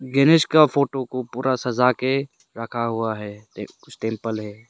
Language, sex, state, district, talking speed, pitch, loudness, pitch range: Hindi, male, Arunachal Pradesh, Lower Dibang Valley, 180 wpm, 125 Hz, -21 LUFS, 115-135 Hz